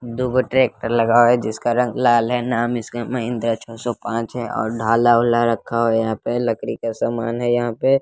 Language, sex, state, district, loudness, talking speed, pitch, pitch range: Hindi, male, Bihar, West Champaran, -19 LUFS, 225 wpm, 120 Hz, 115-120 Hz